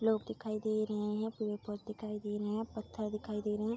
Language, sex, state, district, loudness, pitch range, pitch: Hindi, female, Bihar, Vaishali, -38 LUFS, 210-220 Hz, 215 Hz